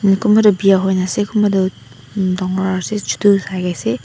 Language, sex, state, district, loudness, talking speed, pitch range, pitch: Nagamese, female, Nagaland, Dimapur, -16 LUFS, 175 wpm, 185-205 Hz, 190 Hz